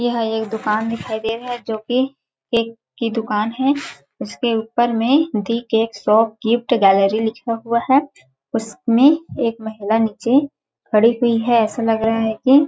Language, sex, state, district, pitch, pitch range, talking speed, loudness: Hindi, female, Chhattisgarh, Balrampur, 230 Hz, 220-240 Hz, 165 wpm, -18 LUFS